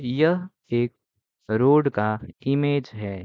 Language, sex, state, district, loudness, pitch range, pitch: Hindi, male, Bihar, Gopalganj, -23 LUFS, 105-145 Hz, 125 Hz